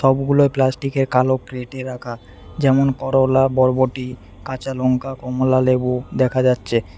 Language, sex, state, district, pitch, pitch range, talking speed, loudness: Bengali, male, West Bengal, Alipurduar, 130 Hz, 125-135 Hz, 120 wpm, -18 LUFS